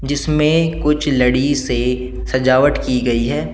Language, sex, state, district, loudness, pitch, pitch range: Hindi, male, Uttar Pradesh, Shamli, -16 LUFS, 130 Hz, 125-150 Hz